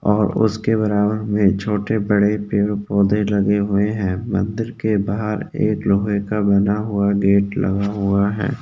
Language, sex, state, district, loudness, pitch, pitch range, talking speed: Hindi, male, Uttarakhand, Tehri Garhwal, -19 LUFS, 105 Hz, 100-105 Hz, 130 wpm